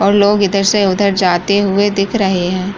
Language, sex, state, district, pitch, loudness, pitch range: Kumaoni, female, Uttarakhand, Uttarkashi, 200 Hz, -13 LUFS, 190-205 Hz